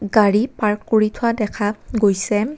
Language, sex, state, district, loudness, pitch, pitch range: Assamese, female, Assam, Kamrup Metropolitan, -19 LUFS, 215 Hz, 205-220 Hz